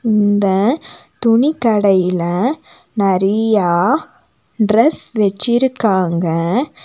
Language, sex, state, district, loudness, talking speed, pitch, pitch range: Tamil, female, Tamil Nadu, Nilgiris, -15 LUFS, 45 wpm, 215 Hz, 190-240 Hz